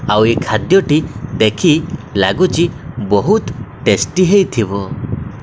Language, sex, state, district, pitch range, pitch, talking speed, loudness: Odia, male, Odisha, Khordha, 110-170 Hz, 145 Hz, 90 wpm, -14 LUFS